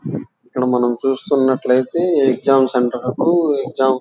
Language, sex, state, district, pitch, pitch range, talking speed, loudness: Telugu, male, Andhra Pradesh, Chittoor, 130 Hz, 125-140 Hz, 105 wpm, -17 LUFS